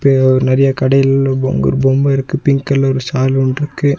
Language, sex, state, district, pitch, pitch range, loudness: Tamil, male, Tamil Nadu, Nilgiris, 135 Hz, 130-140 Hz, -13 LUFS